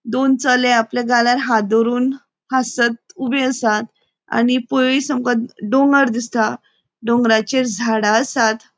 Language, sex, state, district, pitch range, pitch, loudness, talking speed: Konkani, female, Goa, North and South Goa, 225-260 Hz, 245 Hz, -17 LUFS, 115 wpm